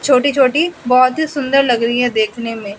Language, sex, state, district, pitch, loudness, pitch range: Hindi, female, Uttar Pradesh, Budaun, 255 Hz, -14 LUFS, 235-280 Hz